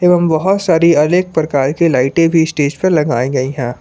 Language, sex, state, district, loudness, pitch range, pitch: Hindi, male, Jharkhand, Palamu, -13 LUFS, 140-170 Hz, 160 Hz